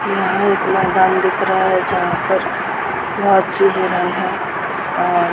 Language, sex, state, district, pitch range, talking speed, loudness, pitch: Hindi, female, Uttar Pradesh, Muzaffarnagar, 185-195 Hz, 145 wpm, -16 LUFS, 190 Hz